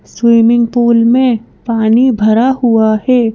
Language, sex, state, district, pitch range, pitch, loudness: Hindi, female, Madhya Pradesh, Bhopal, 225-245 Hz, 235 Hz, -10 LUFS